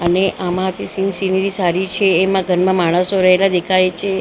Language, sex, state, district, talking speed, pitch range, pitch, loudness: Gujarati, female, Maharashtra, Mumbai Suburban, 230 wpm, 180-190 Hz, 185 Hz, -16 LUFS